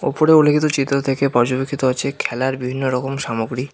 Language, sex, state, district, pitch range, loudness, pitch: Bengali, male, West Bengal, Cooch Behar, 130-140 Hz, -18 LUFS, 135 Hz